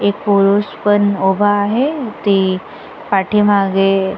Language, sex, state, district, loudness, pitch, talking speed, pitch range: Marathi, female, Maharashtra, Sindhudurg, -14 LUFS, 205 Hz, 115 wpm, 195-205 Hz